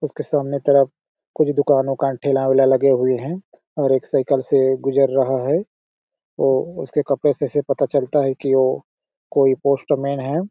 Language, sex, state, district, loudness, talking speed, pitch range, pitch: Hindi, male, Chhattisgarh, Balrampur, -19 LUFS, 170 wpm, 135-145 Hz, 140 Hz